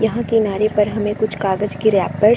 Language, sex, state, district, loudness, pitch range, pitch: Hindi, female, Chhattisgarh, Korba, -18 LUFS, 205-220 Hz, 210 Hz